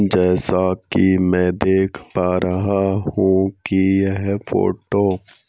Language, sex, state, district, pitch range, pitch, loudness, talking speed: Hindi, male, Madhya Pradesh, Bhopal, 90-95 Hz, 95 Hz, -18 LUFS, 120 wpm